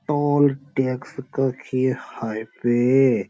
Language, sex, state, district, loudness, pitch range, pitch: Garhwali, male, Uttarakhand, Uttarkashi, -22 LUFS, 125-135 Hz, 130 Hz